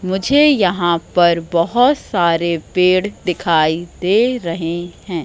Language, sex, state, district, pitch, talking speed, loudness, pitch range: Hindi, female, Madhya Pradesh, Katni, 175 Hz, 115 wpm, -16 LUFS, 170-195 Hz